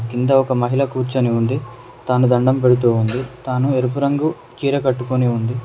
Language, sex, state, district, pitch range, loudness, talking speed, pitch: Telugu, male, Telangana, Mahabubabad, 120-130 Hz, -18 LUFS, 150 wpm, 125 Hz